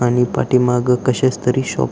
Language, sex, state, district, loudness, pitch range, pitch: Marathi, male, Maharashtra, Aurangabad, -17 LUFS, 125-130 Hz, 125 Hz